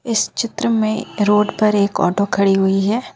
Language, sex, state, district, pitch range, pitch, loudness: Hindi, female, Jharkhand, Ranchi, 200-225 Hz, 210 Hz, -17 LUFS